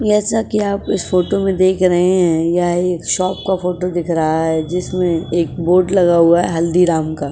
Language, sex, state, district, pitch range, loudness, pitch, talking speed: Hindi, female, Maharashtra, Chandrapur, 170-185 Hz, -15 LUFS, 180 Hz, 205 wpm